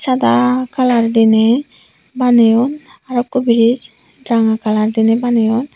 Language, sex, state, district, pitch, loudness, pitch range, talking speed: Chakma, female, Tripura, Unakoti, 235 Hz, -14 LUFS, 225-255 Hz, 105 wpm